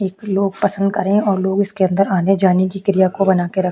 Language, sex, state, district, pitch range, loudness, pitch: Hindi, female, Chhattisgarh, Korba, 190-195 Hz, -16 LUFS, 195 Hz